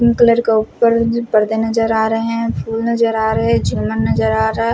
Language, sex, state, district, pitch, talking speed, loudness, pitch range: Hindi, male, Punjab, Fazilka, 225 Hz, 230 wpm, -15 LUFS, 220-230 Hz